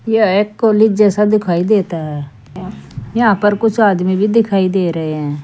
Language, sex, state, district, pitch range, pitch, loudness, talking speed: Hindi, female, Uttar Pradesh, Saharanpur, 175-215 Hz, 200 Hz, -14 LUFS, 165 wpm